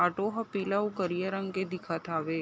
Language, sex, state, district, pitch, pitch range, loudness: Chhattisgarhi, female, Chhattisgarh, Raigarh, 190 Hz, 175-195 Hz, -32 LUFS